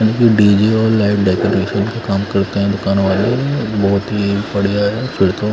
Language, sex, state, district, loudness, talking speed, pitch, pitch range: Hindi, male, Punjab, Fazilka, -15 LUFS, 175 wpm, 100 Hz, 100-110 Hz